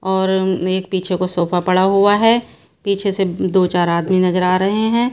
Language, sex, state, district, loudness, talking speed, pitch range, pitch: Hindi, female, Bihar, Katihar, -16 LUFS, 200 wpm, 180-200 Hz, 190 Hz